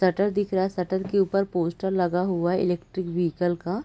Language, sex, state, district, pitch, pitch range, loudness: Hindi, female, Bihar, Sitamarhi, 185 Hz, 175-190 Hz, -25 LUFS